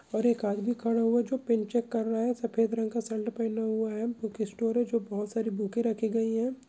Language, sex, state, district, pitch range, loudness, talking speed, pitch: Hindi, male, Bihar, Bhagalpur, 220-235 Hz, -30 LUFS, 270 wpm, 225 Hz